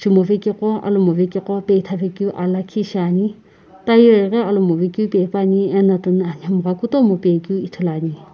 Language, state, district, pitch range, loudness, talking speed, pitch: Sumi, Nagaland, Kohima, 180-205 Hz, -17 LUFS, 135 wpm, 195 Hz